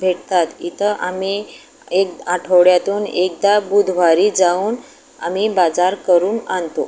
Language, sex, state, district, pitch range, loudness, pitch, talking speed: Marathi, female, Maharashtra, Aurangabad, 180-205 Hz, -16 LUFS, 185 Hz, 105 wpm